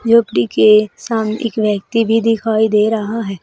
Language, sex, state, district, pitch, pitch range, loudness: Hindi, female, Uttar Pradesh, Saharanpur, 220 Hz, 210-225 Hz, -15 LUFS